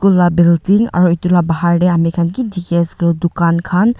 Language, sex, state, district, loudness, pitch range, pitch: Nagamese, female, Nagaland, Dimapur, -14 LUFS, 170-180 Hz, 175 Hz